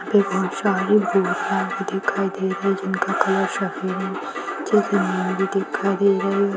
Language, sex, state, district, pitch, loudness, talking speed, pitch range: Bhojpuri, female, Bihar, Saran, 195 Hz, -21 LUFS, 175 wpm, 195-200 Hz